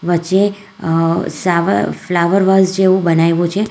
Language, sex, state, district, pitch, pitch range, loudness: Gujarati, female, Gujarat, Valsad, 175 Hz, 165-190 Hz, -14 LUFS